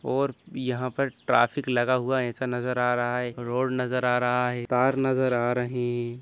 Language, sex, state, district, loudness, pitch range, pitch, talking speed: Hindi, male, Bihar, Begusarai, -26 LUFS, 120-130 Hz, 125 Hz, 220 wpm